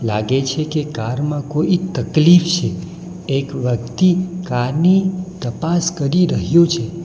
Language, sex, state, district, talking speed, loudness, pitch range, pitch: Gujarati, male, Gujarat, Valsad, 130 wpm, -17 LUFS, 135-175 Hz, 160 Hz